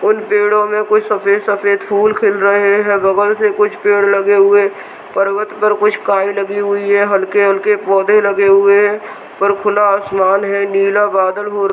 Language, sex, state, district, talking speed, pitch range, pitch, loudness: Hindi, female, Uttarakhand, Uttarkashi, 180 wpm, 200-210 Hz, 200 Hz, -13 LUFS